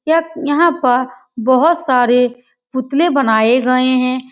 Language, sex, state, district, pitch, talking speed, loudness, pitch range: Hindi, female, Bihar, Saran, 255 Hz, 125 wpm, -14 LUFS, 250-295 Hz